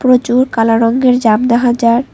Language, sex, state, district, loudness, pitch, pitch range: Bengali, female, Assam, Hailakandi, -11 LUFS, 240 Hz, 230-250 Hz